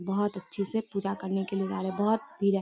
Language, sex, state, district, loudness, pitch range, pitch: Hindi, female, Bihar, Darbhanga, -30 LUFS, 195-205 Hz, 195 Hz